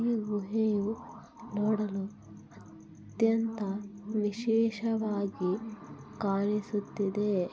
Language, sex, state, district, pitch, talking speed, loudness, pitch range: Kannada, female, Karnataka, Bellary, 210 Hz, 65 wpm, -32 LUFS, 200-225 Hz